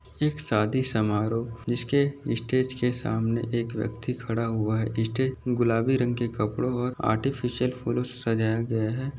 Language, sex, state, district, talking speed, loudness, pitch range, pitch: Hindi, male, Maharashtra, Aurangabad, 155 wpm, -27 LUFS, 115-130 Hz, 120 Hz